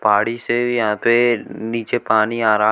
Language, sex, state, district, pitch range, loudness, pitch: Hindi, male, Uttar Pradesh, Shamli, 110-120 Hz, -18 LUFS, 115 Hz